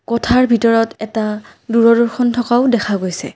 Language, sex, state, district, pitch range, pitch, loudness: Assamese, female, Assam, Kamrup Metropolitan, 220-240 Hz, 230 Hz, -15 LUFS